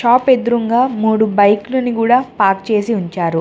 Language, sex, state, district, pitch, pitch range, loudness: Telugu, female, Telangana, Mahabubabad, 225 Hz, 205-245 Hz, -14 LUFS